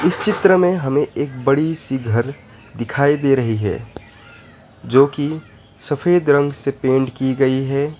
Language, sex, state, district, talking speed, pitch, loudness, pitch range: Hindi, male, West Bengal, Alipurduar, 155 wpm, 140 Hz, -18 LUFS, 130-150 Hz